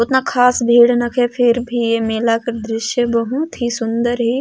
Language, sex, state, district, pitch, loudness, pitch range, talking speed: Sadri, female, Chhattisgarh, Jashpur, 240 Hz, -16 LUFS, 230-245 Hz, 190 wpm